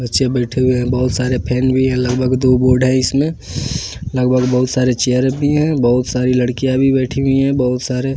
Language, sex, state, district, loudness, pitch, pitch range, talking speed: Hindi, male, Bihar, West Champaran, -15 LUFS, 130 Hz, 125-130 Hz, 220 wpm